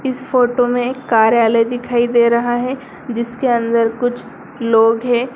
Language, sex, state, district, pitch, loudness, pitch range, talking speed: Hindi, female, Bihar, Sitamarhi, 240 Hz, -16 LUFS, 235-250 Hz, 145 wpm